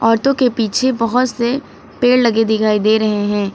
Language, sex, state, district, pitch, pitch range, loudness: Hindi, female, Uttar Pradesh, Lucknow, 230 Hz, 215-250 Hz, -15 LUFS